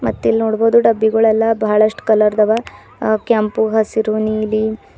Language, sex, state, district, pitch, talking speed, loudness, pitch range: Kannada, female, Karnataka, Bidar, 220 Hz, 145 wpm, -15 LUFS, 215-225 Hz